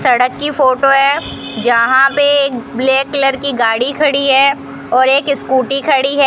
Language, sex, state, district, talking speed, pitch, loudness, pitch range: Hindi, female, Rajasthan, Bikaner, 160 wpm, 270 Hz, -12 LUFS, 255-280 Hz